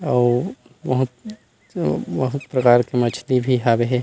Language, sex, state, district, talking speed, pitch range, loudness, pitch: Chhattisgarhi, male, Chhattisgarh, Rajnandgaon, 150 wpm, 120-130 Hz, -20 LUFS, 125 Hz